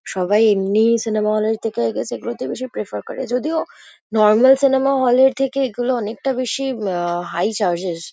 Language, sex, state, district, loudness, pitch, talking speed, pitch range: Bengali, female, West Bengal, Kolkata, -19 LUFS, 225 Hz, 190 wpm, 195-260 Hz